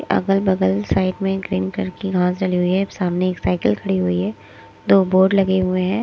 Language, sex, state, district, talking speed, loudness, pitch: Hindi, female, Chandigarh, Chandigarh, 220 wpm, -19 LUFS, 185 Hz